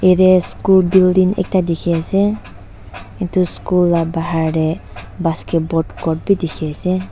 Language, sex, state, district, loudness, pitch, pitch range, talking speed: Nagamese, female, Nagaland, Dimapur, -16 LUFS, 170 Hz, 160-185 Hz, 120 wpm